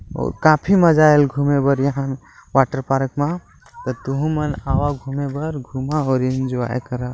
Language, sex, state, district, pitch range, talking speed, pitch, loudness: Chhattisgarhi, male, Chhattisgarh, Balrampur, 130-150 Hz, 170 wpm, 140 Hz, -19 LUFS